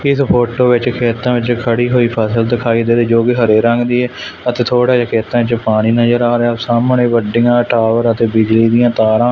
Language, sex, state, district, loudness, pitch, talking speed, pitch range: Punjabi, male, Punjab, Fazilka, -13 LUFS, 120 Hz, 220 wpm, 115-120 Hz